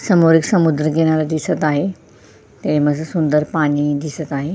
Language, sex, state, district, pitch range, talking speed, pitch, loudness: Marathi, female, Maharashtra, Sindhudurg, 145-160 Hz, 130 wpm, 155 Hz, -17 LUFS